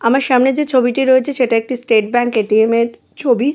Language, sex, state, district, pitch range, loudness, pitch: Bengali, female, West Bengal, Jalpaiguri, 230-265 Hz, -15 LUFS, 245 Hz